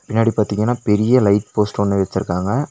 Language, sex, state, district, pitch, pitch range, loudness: Tamil, male, Tamil Nadu, Nilgiris, 105 Hz, 100-115 Hz, -17 LUFS